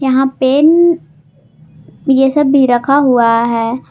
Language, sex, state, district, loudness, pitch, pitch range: Hindi, female, Jharkhand, Garhwa, -11 LUFS, 260 Hz, 170-275 Hz